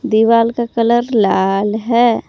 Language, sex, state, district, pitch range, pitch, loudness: Hindi, female, Jharkhand, Palamu, 215-235 Hz, 230 Hz, -14 LUFS